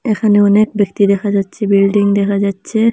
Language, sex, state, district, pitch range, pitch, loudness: Bengali, female, Assam, Hailakandi, 200-210 Hz, 205 Hz, -13 LUFS